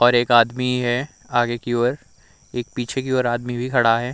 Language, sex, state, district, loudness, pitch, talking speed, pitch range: Hindi, male, Bihar, Vaishali, -21 LUFS, 120 Hz, 220 wpm, 120-125 Hz